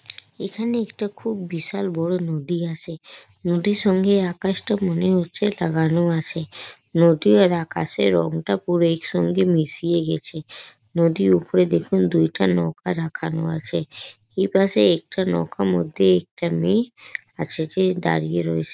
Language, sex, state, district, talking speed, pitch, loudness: Bengali, female, West Bengal, North 24 Parganas, 130 wpm, 165 Hz, -21 LUFS